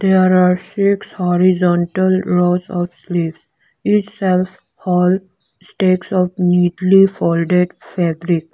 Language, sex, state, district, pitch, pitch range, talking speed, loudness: English, female, Arunachal Pradesh, Lower Dibang Valley, 180 Hz, 175-190 Hz, 105 wpm, -16 LUFS